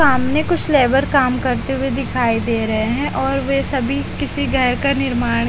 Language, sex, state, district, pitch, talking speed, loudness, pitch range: Hindi, female, Haryana, Charkhi Dadri, 265 Hz, 195 wpm, -17 LUFS, 235-275 Hz